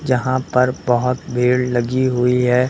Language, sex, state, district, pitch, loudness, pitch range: Hindi, male, Uttar Pradesh, Lucknow, 125 Hz, -17 LUFS, 125-130 Hz